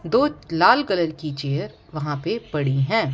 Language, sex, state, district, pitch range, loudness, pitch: Hindi, female, Gujarat, Valsad, 140-170 Hz, -22 LUFS, 150 Hz